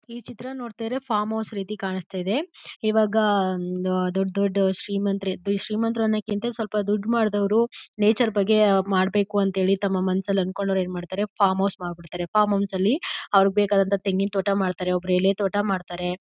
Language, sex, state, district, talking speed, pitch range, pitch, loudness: Kannada, female, Karnataka, Mysore, 160 wpm, 190-215 Hz, 200 Hz, -24 LUFS